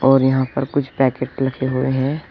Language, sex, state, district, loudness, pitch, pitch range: Hindi, male, Uttar Pradesh, Shamli, -19 LUFS, 135 Hz, 130-135 Hz